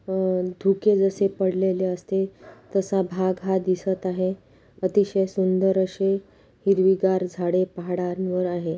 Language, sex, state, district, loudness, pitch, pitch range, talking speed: Marathi, female, Maharashtra, Pune, -23 LUFS, 190 Hz, 185-195 Hz, 125 wpm